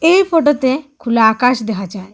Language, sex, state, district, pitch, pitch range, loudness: Bengali, female, Assam, Hailakandi, 255 Hz, 220-295 Hz, -14 LUFS